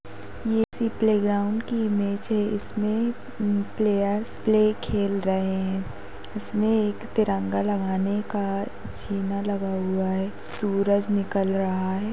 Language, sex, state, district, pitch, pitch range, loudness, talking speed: Hindi, female, Maharashtra, Sindhudurg, 205 Hz, 195-215 Hz, -25 LUFS, 130 wpm